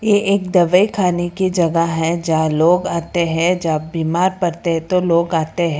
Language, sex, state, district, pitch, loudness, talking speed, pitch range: Hindi, female, Karnataka, Bangalore, 170 Hz, -17 LUFS, 195 wpm, 165-180 Hz